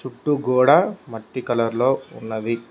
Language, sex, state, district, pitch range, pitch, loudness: Telugu, male, Telangana, Mahabubabad, 115-130 Hz, 125 Hz, -20 LUFS